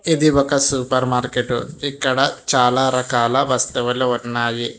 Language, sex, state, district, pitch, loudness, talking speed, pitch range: Telugu, male, Telangana, Hyderabad, 130 Hz, -18 LUFS, 115 wpm, 125-140 Hz